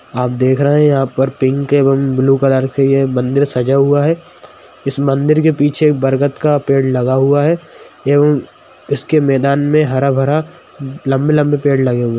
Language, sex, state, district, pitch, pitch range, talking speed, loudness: Hindi, male, Bihar, Madhepura, 140 Hz, 135-145 Hz, 175 wpm, -13 LUFS